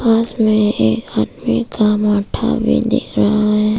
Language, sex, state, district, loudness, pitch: Hindi, female, Arunachal Pradesh, Papum Pare, -16 LUFS, 210 Hz